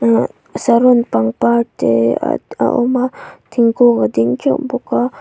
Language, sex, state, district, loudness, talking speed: Mizo, female, Mizoram, Aizawl, -15 LUFS, 150 wpm